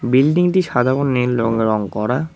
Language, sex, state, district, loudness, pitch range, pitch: Bengali, male, West Bengal, Cooch Behar, -17 LUFS, 115-140 Hz, 125 Hz